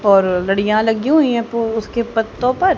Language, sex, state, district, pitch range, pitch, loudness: Hindi, female, Haryana, Rohtak, 210-245 Hz, 225 Hz, -17 LUFS